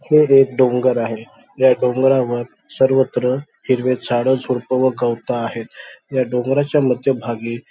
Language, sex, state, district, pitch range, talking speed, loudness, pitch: Marathi, male, Maharashtra, Aurangabad, 120-135 Hz, 125 wpm, -17 LUFS, 130 Hz